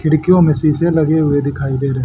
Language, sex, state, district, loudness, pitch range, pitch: Hindi, male, Haryana, Rohtak, -14 LUFS, 140-160 Hz, 155 Hz